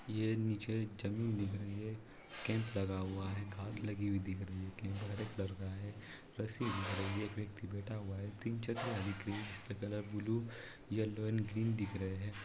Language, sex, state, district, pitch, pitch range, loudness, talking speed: Hindi, male, Chhattisgarh, Raigarh, 105 Hz, 100-110 Hz, -40 LUFS, 195 wpm